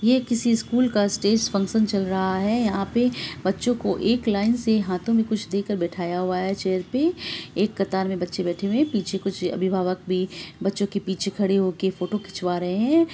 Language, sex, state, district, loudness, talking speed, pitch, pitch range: Hindi, female, Bihar, Araria, -24 LUFS, 205 wpm, 200 Hz, 185-225 Hz